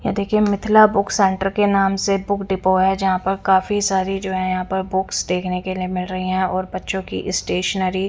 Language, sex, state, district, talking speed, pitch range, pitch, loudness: Hindi, female, Punjab, Fazilka, 230 wpm, 185-200 Hz, 190 Hz, -19 LUFS